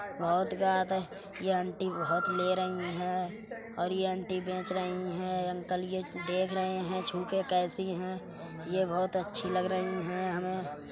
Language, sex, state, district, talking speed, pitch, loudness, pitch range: Hindi, female, Uttar Pradesh, Etah, 170 wpm, 185 Hz, -33 LUFS, 180-185 Hz